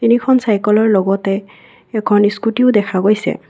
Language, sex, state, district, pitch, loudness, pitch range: Assamese, female, Assam, Kamrup Metropolitan, 210 Hz, -14 LUFS, 200-235 Hz